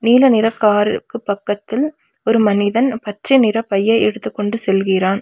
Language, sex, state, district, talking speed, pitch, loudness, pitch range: Tamil, female, Tamil Nadu, Nilgiris, 140 wpm, 220 Hz, -16 LUFS, 205-235 Hz